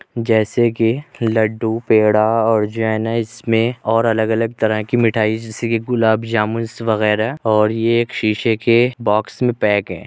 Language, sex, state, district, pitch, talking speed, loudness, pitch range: Hindi, male, Uttar Pradesh, Jyotiba Phule Nagar, 115 Hz, 160 wpm, -17 LUFS, 110-115 Hz